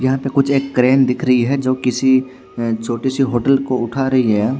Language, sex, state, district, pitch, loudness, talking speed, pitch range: Hindi, male, Haryana, Jhajjar, 130 Hz, -16 LUFS, 220 wpm, 125-135 Hz